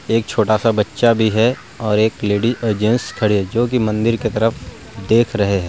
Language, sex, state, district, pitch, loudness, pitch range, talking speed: Hindi, male, Bihar, Vaishali, 110 Hz, -17 LUFS, 105-115 Hz, 220 wpm